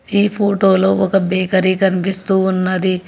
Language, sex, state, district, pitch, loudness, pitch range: Telugu, male, Telangana, Hyderabad, 190 Hz, -15 LUFS, 185-195 Hz